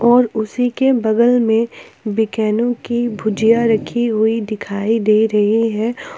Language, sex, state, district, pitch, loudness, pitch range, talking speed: Hindi, female, Jharkhand, Palamu, 225 Hz, -16 LUFS, 215-240 Hz, 135 wpm